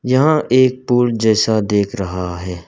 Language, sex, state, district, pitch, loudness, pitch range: Hindi, male, Arunachal Pradesh, Lower Dibang Valley, 110 Hz, -16 LUFS, 95-125 Hz